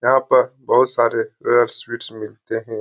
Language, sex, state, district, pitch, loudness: Hindi, male, Bihar, Lakhisarai, 120 Hz, -19 LUFS